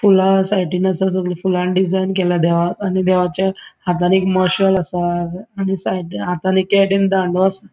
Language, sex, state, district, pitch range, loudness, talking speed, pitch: Konkani, male, Goa, North and South Goa, 180-190 Hz, -17 LUFS, 165 wpm, 185 Hz